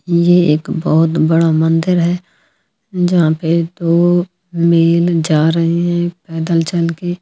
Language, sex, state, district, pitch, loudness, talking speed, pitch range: Hindi, female, Delhi, New Delhi, 170 Hz, -14 LUFS, 140 wpm, 165-175 Hz